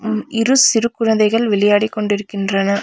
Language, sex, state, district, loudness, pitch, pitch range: Tamil, female, Tamil Nadu, Nilgiris, -15 LUFS, 215 Hz, 205-225 Hz